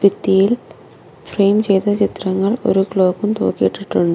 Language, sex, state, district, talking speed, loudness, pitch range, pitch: Malayalam, female, Kerala, Kollam, 100 wpm, -16 LUFS, 190-205 Hz, 200 Hz